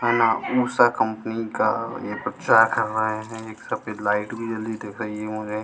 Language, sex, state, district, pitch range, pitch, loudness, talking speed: Hindi, male, Bihar, Katihar, 110-115 Hz, 110 Hz, -23 LUFS, 215 wpm